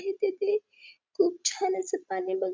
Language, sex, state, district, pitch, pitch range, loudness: Marathi, female, Maharashtra, Dhule, 390 Hz, 350-410 Hz, -29 LUFS